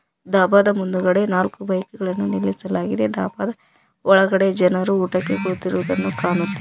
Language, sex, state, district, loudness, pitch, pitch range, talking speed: Kannada, female, Karnataka, Koppal, -20 LUFS, 185 Hz, 175-195 Hz, 100 wpm